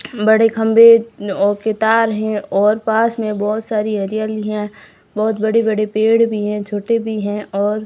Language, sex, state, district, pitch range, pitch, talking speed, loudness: Hindi, female, Rajasthan, Barmer, 210-225 Hz, 215 Hz, 175 wpm, -16 LUFS